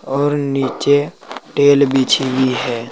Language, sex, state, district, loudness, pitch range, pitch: Hindi, male, Uttar Pradesh, Saharanpur, -15 LUFS, 130-140 Hz, 135 Hz